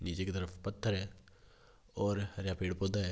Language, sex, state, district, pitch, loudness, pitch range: Hindi, male, Rajasthan, Nagaur, 95 Hz, -37 LUFS, 95-100 Hz